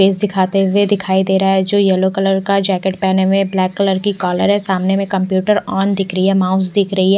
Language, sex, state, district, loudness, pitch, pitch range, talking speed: Hindi, male, Odisha, Nuapada, -15 LUFS, 195 Hz, 190-195 Hz, 260 wpm